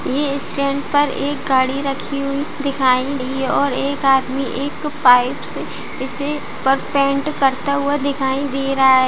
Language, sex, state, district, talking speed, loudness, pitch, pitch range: Hindi, female, Jharkhand, Jamtara, 170 wpm, -18 LUFS, 275 Hz, 265-280 Hz